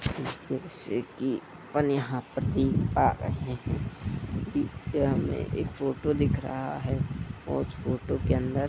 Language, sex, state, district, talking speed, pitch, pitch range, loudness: Hindi, male, Uttar Pradesh, Budaun, 160 wpm, 135 Hz, 125-140 Hz, -30 LUFS